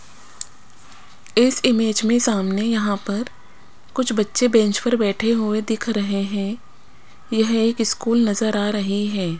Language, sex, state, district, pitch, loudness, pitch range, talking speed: Hindi, female, Rajasthan, Jaipur, 220 Hz, -20 LUFS, 205-230 Hz, 140 wpm